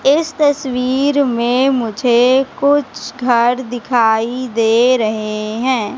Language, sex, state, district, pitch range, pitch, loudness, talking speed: Hindi, female, Madhya Pradesh, Katni, 235-270 Hz, 250 Hz, -15 LUFS, 100 wpm